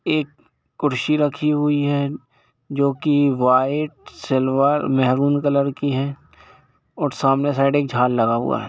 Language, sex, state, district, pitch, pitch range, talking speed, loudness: Hindi, male, Jharkhand, Jamtara, 140 Hz, 130-145 Hz, 145 wpm, -20 LUFS